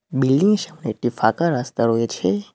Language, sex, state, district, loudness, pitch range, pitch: Bengali, male, West Bengal, Cooch Behar, -20 LUFS, 115-170 Hz, 130 Hz